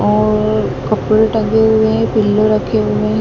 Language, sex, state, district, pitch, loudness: Hindi, female, Madhya Pradesh, Dhar, 210 Hz, -14 LUFS